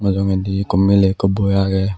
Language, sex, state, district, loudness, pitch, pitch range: Chakma, male, Tripura, West Tripura, -16 LUFS, 95 Hz, 95-100 Hz